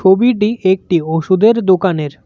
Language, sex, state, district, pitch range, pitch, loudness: Bengali, male, West Bengal, Cooch Behar, 170-210 Hz, 190 Hz, -13 LUFS